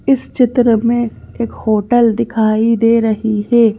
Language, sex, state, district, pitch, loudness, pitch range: Hindi, female, Madhya Pradesh, Bhopal, 230 Hz, -14 LUFS, 220-235 Hz